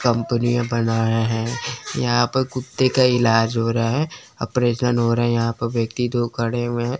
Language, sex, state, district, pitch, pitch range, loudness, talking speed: Hindi, male, Chandigarh, Chandigarh, 120 Hz, 115-125 Hz, -20 LUFS, 190 wpm